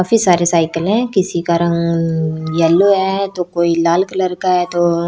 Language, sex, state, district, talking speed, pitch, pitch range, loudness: Hindi, female, Chhattisgarh, Raipur, 200 wpm, 175 Hz, 170-185 Hz, -15 LUFS